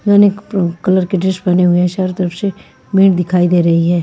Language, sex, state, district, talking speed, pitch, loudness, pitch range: Hindi, female, Maharashtra, Mumbai Suburban, 225 wpm, 185 Hz, -14 LUFS, 175-195 Hz